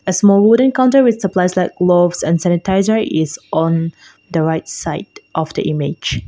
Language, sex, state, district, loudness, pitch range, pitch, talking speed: English, female, Mizoram, Aizawl, -15 LUFS, 160-200 Hz, 175 Hz, 170 wpm